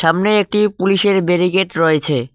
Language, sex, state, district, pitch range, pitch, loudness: Bengali, male, West Bengal, Cooch Behar, 165-200 Hz, 185 Hz, -15 LUFS